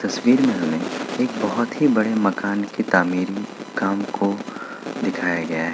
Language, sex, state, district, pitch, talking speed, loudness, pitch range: Hindi, male, Bihar, Kishanganj, 100 Hz, 165 wpm, -21 LUFS, 90-110 Hz